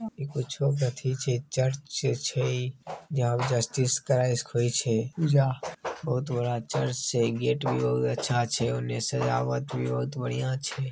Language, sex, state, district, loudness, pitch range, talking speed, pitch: Maithili, male, Bihar, Begusarai, -28 LUFS, 110-130 Hz, 130 wpm, 125 Hz